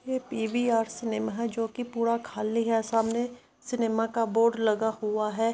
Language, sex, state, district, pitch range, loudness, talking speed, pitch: Hindi, female, Uttar Pradesh, Jyotiba Phule Nagar, 225-235 Hz, -28 LUFS, 140 wpm, 230 Hz